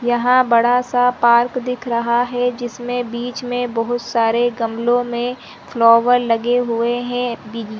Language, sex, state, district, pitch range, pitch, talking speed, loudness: Hindi, female, Chhattisgarh, Rajnandgaon, 235-245 Hz, 240 Hz, 140 wpm, -17 LUFS